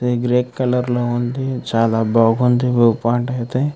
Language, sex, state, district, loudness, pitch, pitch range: Telugu, male, Andhra Pradesh, Krishna, -17 LUFS, 120 Hz, 115-125 Hz